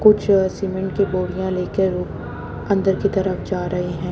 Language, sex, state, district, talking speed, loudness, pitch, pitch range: Hindi, female, Haryana, Jhajjar, 160 wpm, -21 LUFS, 185 Hz, 180-195 Hz